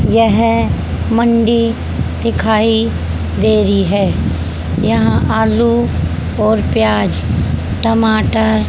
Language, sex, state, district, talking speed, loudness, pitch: Hindi, female, Haryana, Jhajjar, 75 wpm, -14 LUFS, 110 Hz